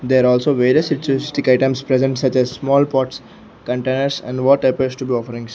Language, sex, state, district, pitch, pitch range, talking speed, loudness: English, male, Arunachal Pradesh, Lower Dibang Valley, 130 Hz, 125-135 Hz, 185 wpm, -17 LUFS